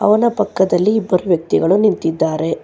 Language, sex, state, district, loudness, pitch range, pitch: Kannada, female, Karnataka, Bangalore, -15 LUFS, 165-210 Hz, 190 Hz